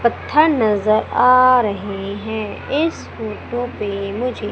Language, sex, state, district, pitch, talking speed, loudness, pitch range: Hindi, female, Madhya Pradesh, Umaria, 220 Hz, 120 wpm, -18 LUFS, 210-250 Hz